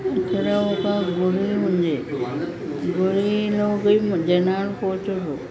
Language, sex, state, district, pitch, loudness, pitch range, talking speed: Telugu, male, Telangana, Nalgonda, 195 Hz, -22 LUFS, 180-205 Hz, 100 wpm